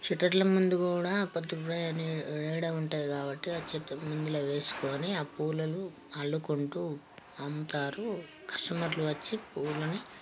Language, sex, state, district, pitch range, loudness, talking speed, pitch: Telugu, male, Telangana, Nalgonda, 150-175 Hz, -33 LUFS, 100 wpm, 160 Hz